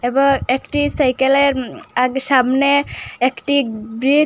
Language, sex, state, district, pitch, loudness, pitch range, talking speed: Bengali, female, Assam, Hailakandi, 270 Hz, -16 LUFS, 255-280 Hz, 115 wpm